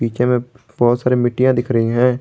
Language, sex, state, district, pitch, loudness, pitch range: Hindi, male, Jharkhand, Garhwa, 125 Hz, -16 LUFS, 120-125 Hz